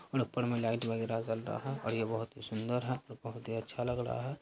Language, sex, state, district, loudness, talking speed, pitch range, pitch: Hindi, male, Bihar, Saharsa, -36 LUFS, 285 wpm, 115-125 Hz, 115 Hz